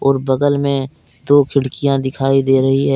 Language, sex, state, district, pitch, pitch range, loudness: Hindi, male, Jharkhand, Deoghar, 135 Hz, 135-140 Hz, -15 LUFS